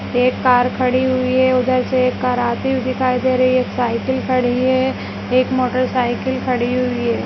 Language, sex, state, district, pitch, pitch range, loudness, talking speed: Hindi, female, Bihar, Madhepura, 255 Hz, 250-255 Hz, -17 LUFS, 205 wpm